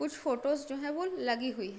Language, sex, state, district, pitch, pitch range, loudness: Hindi, female, Uttar Pradesh, Deoria, 275 Hz, 245-300 Hz, -34 LUFS